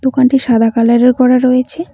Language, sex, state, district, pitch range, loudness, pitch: Bengali, female, West Bengal, Cooch Behar, 240-260 Hz, -11 LUFS, 255 Hz